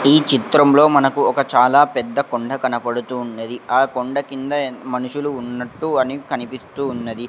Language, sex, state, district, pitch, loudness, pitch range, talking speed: Telugu, male, Andhra Pradesh, Sri Satya Sai, 130 Hz, -18 LUFS, 120-140 Hz, 140 wpm